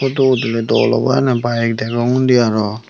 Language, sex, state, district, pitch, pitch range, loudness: Chakma, male, Tripura, Unakoti, 120 Hz, 115-130 Hz, -15 LUFS